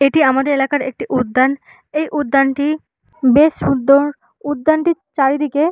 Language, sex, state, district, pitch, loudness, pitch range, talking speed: Bengali, female, West Bengal, Malda, 285 Hz, -16 LUFS, 270-305 Hz, 125 wpm